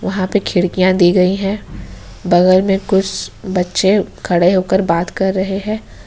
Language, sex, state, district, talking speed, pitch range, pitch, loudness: Hindi, female, Jharkhand, Ranchi, 160 wpm, 180-195 Hz, 185 Hz, -15 LUFS